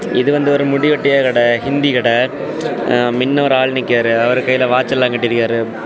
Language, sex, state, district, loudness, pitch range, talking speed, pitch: Tamil, male, Tamil Nadu, Kanyakumari, -14 LUFS, 120-140 Hz, 185 wpm, 125 Hz